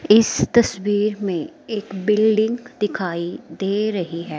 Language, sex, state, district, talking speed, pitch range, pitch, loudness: Hindi, female, Himachal Pradesh, Shimla, 125 wpm, 185-215 Hz, 210 Hz, -20 LUFS